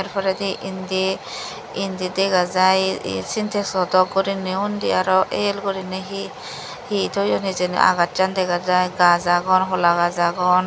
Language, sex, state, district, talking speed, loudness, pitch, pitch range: Chakma, female, Tripura, Dhalai, 145 wpm, -20 LUFS, 190 Hz, 180-195 Hz